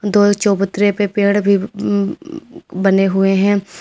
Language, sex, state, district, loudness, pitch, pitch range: Hindi, female, Uttar Pradesh, Lalitpur, -15 LUFS, 195 Hz, 195-205 Hz